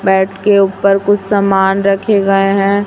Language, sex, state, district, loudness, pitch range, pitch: Hindi, female, Chhattisgarh, Raipur, -12 LUFS, 195-200 Hz, 195 Hz